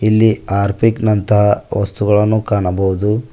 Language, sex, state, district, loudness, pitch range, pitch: Kannada, male, Karnataka, Koppal, -15 LUFS, 100-110 Hz, 105 Hz